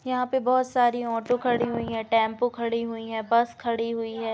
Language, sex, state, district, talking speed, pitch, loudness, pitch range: Hindi, female, Uttar Pradesh, Jalaun, 220 wpm, 235 Hz, -25 LUFS, 230-245 Hz